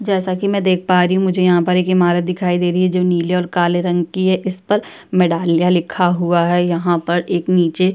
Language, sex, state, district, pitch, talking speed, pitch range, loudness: Hindi, female, Uttar Pradesh, Budaun, 180 Hz, 250 wpm, 175-185 Hz, -16 LUFS